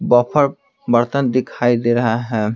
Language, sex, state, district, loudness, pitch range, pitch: Hindi, male, Bihar, Patna, -17 LUFS, 120-140 Hz, 120 Hz